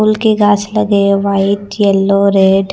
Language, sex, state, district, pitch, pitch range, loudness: Hindi, female, Chandigarh, Chandigarh, 200 Hz, 195-205 Hz, -12 LUFS